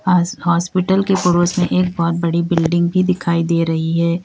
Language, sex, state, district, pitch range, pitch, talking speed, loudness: Hindi, female, Uttar Pradesh, Lalitpur, 170-180 Hz, 175 Hz, 200 wpm, -16 LUFS